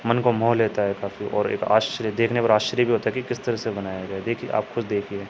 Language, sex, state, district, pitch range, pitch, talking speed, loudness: Hindi, male, Uttar Pradesh, Hamirpur, 100-120 Hz, 115 Hz, 270 wpm, -23 LUFS